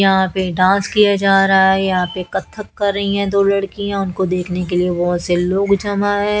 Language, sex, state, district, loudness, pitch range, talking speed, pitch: Hindi, female, Haryana, Jhajjar, -16 LUFS, 185-200 Hz, 225 wpm, 195 Hz